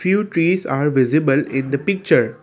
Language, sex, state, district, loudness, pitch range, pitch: English, male, Assam, Kamrup Metropolitan, -18 LUFS, 135-185 Hz, 155 Hz